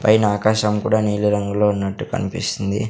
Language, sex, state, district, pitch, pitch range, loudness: Telugu, male, Andhra Pradesh, Sri Satya Sai, 105 Hz, 105-110 Hz, -19 LUFS